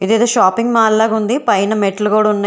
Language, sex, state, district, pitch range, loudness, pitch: Telugu, female, Telangana, Hyderabad, 205-230 Hz, -14 LUFS, 215 Hz